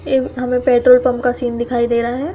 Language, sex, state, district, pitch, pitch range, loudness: Hindi, female, Bihar, Samastipur, 250 Hz, 240-255 Hz, -15 LUFS